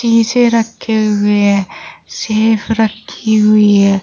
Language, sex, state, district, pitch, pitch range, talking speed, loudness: Hindi, female, Uttar Pradesh, Shamli, 215 Hz, 205-225 Hz, 120 wpm, -12 LUFS